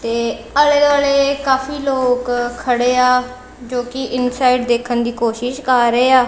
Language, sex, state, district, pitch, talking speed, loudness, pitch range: Punjabi, female, Punjab, Kapurthala, 250 Hz, 155 wpm, -16 LUFS, 240-265 Hz